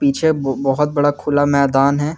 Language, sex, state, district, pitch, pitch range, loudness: Hindi, male, Jharkhand, Garhwa, 145 Hz, 140-145 Hz, -16 LUFS